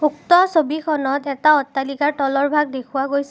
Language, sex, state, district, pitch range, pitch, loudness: Assamese, female, Assam, Kamrup Metropolitan, 275-305 Hz, 285 Hz, -18 LUFS